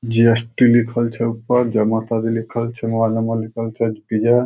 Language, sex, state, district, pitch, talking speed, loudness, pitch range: Maithili, male, Bihar, Samastipur, 115 Hz, 175 wpm, -18 LUFS, 115-120 Hz